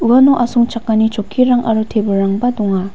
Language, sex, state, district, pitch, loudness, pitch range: Garo, female, Meghalaya, West Garo Hills, 225 Hz, -14 LUFS, 205-245 Hz